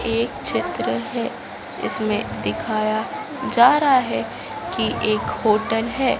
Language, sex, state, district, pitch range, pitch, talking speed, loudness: Hindi, female, Madhya Pradesh, Dhar, 215-260 Hz, 230 Hz, 115 wpm, -21 LUFS